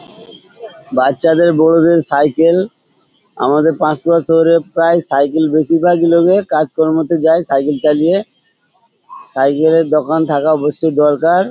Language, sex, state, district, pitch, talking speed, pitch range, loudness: Bengali, male, West Bengal, Paschim Medinipur, 160 Hz, 105 wpm, 155-170 Hz, -12 LUFS